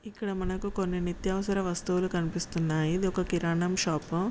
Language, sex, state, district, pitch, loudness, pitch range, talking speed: Telugu, female, Telangana, Karimnagar, 180 Hz, -30 LUFS, 175-190 Hz, 140 wpm